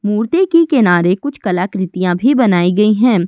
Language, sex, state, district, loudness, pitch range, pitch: Hindi, female, Uttar Pradesh, Budaun, -13 LUFS, 180-260 Hz, 210 Hz